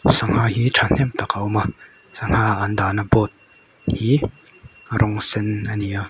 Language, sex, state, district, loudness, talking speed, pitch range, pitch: Mizo, male, Mizoram, Aizawl, -20 LUFS, 155 wpm, 100-110 Hz, 105 Hz